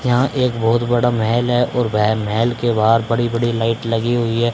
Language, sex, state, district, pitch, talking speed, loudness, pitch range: Hindi, male, Haryana, Charkhi Dadri, 115 Hz, 225 wpm, -17 LUFS, 115-120 Hz